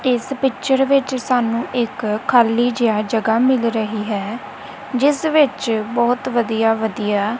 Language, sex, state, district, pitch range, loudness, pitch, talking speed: Punjabi, female, Punjab, Kapurthala, 220-260 Hz, -18 LUFS, 240 Hz, 130 wpm